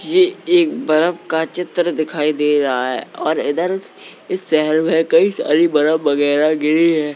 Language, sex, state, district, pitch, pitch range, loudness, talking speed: Hindi, male, Uttar Pradesh, Jalaun, 160 Hz, 150-180 Hz, -16 LUFS, 170 wpm